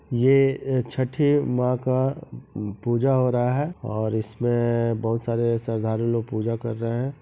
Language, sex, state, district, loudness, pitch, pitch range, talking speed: Hindi, male, Jharkhand, Sahebganj, -24 LUFS, 120 Hz, 115-130 Hz, 160 wpm